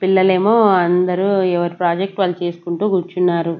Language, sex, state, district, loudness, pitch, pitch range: Telugu, female, Andhra Pradesh, Sri Satya Sai, -16 LUFS, 180 Hz, 175-190 Hz